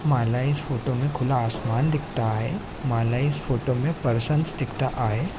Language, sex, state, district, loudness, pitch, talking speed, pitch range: Marathi, male, Maharashtra, Sindhudurg, -24 LUFS, 130 Hz, 165 wpm, 115-145 Hz